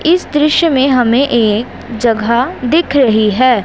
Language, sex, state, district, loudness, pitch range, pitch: Hindi, male, Punjab, Pathankot, -12 LUFS, 230-295 Hz, 255 Hz